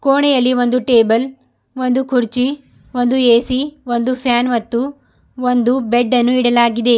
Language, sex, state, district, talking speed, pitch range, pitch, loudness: Kannada, female, Karnataka, Bidar, 120 wpm, 240-260 Hz, 250 Hz, -15 LUFS